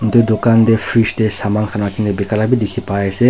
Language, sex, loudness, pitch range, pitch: Nagamese, male, -15 LUFS, 105-115 Hz, 110 Hz